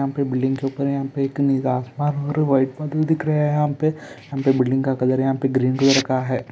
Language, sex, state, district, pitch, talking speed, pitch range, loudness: Hindi, male, Andhra Pradesh, Anantapur, 135 Hz, 250 wpm, 130-145 Hz, -21 LUFS